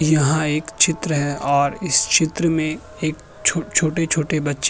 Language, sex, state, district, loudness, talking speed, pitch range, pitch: Hindi, male, Uttar Pradesh, Hamirpur, -19 LUFS, 155 wpm, 150-160 Hz, 155 Hz